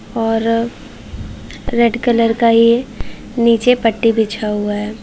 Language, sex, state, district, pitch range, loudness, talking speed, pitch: Hindi, female, Uttar Pradesh, Varanasi, 225-235 Hz, -15 LUFS, 120 wpm, 230 Hz